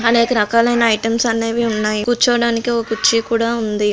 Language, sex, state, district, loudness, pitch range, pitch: Telugu, female, Andhra Pradesh, Guntur, -16 LUFS, 225-235 Hz, 230 Hz